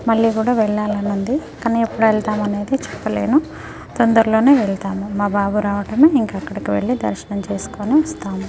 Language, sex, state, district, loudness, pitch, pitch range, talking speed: Telugu, female, Telangana, Nalgonda, -18 LUFS, 210 Hz, 200-230 Hz, 150 wpm